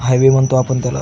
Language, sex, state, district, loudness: Marathi, male, Maharashtra, Aurangabad, -14 LUFS